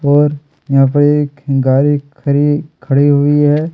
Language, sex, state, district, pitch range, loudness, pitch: Hindi, male, Chhattisgarh, Kabirdham, 140-145 Hz, -13 LUFS, 145 Hz